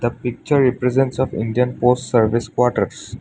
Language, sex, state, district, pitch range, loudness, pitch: English, male, Assam, Sonitpur, 120-130 Hz, -19 LUFS, 125 Hz